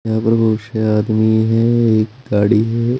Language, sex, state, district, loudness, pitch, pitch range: Hindi, male, Uttar Pradesh, Saharanpur, -15 LUFS, 110 Hz, 110-115 Hz